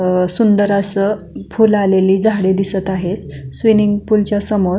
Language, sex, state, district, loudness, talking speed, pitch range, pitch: Marathi, female, Maharashtra, Pune, -15 LUFS, 140 wpm, 190-210 Hz, 200 Hz